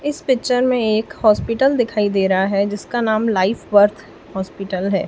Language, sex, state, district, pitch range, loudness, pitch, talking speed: Hindi, female, Chhattisgarh, Raipur, 195-240 Hz, -18 LUFS, 215 Hz, 175 wpm